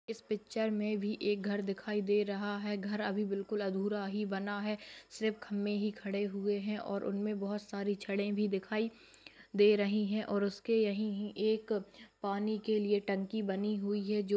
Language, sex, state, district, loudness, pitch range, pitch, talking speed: Hindi, male, Bihar, Muzaffarpur, -35 LUFS, 200-210 Hz, 205 Hz, 195 wpm